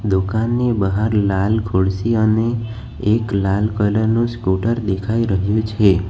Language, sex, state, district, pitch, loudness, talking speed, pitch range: Gujarati, male, Gujarat, Valsad, 110 Hz, -18 LUFS, 130 wpm, 100-115 Hz